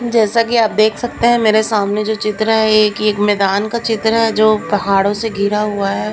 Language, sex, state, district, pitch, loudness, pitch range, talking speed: Hindi, female, Bihar, Katihar, 215 Hz, -14 LUFS, 205-225 Hz, 225 wpm